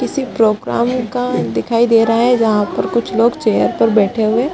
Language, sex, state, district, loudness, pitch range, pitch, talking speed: Hindi, female, Bihar, Gaya, -15 LUFS, 220-245 Hz, 230 Hz, 210 wpm